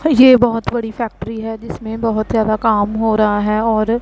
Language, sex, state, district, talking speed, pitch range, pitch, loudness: Hindi, female, Punjab, Pathankot, 210 wpm, 215-230 Hz, 225 Hz, -16 LUFS